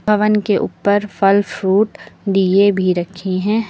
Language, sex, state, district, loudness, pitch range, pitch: Hindi, female, Uttar Pradesh, Lucknow, -16 LUFS, 190-210 Hz, 200 Hz